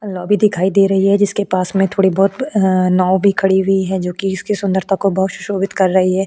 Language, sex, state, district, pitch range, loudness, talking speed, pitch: Hindi, female, Goa, North and South Goa, 190-195 Hz, -15 LUFS, 240 wpm, 195 Hz